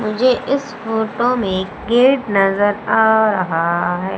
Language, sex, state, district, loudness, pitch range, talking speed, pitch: Hindi, female, Madhya Pradesh, Umaria, -16 LUFS, 190-240 Hz, 130 wpm, 220 Hz